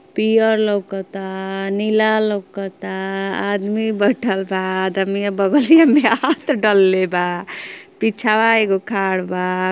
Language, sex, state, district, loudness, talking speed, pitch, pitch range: Bhojpuri, female, Uttar Pradesh, Ghazipur, -17 LUFS, 105 wpm, 200 Hz, 190-220 Hz